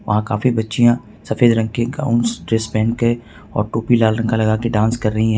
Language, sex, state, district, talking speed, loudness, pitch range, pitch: Hindi, male, Jharkhand, Ranchi, 235 wpm, -18 LUFS, 110-120 Hz, 110 Hz